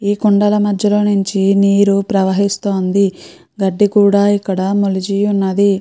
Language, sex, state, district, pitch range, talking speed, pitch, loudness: Telugu, female, Andhra Pradesh, Chittoor, 195-205 Hz, 135 wpm, 200 Hz, -14 LUFS